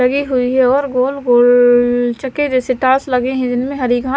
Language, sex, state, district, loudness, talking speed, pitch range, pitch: Hindi, female, Himachal Pradesh, Shimla, -14 LUFS, 185 wpm, 245-265 Hz, 255 Hz